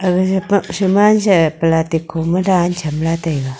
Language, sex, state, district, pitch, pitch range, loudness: Wancho, female, Arunachal Pradesh, Longding, 175 Hz, 160-190 Hz, -15 LUFS